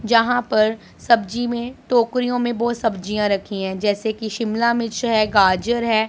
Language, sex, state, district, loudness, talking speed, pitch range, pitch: Hindi, female, Punjab, Pathankot, -20 LUFS, 165 wpm, 215-240 Hz, 225 Hz